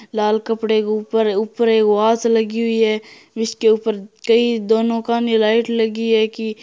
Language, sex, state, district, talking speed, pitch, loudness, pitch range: Hindi, male, Rajasthan, Churu, 170 wpm, 225 Hz, -17 LUFS, 220-230 Hz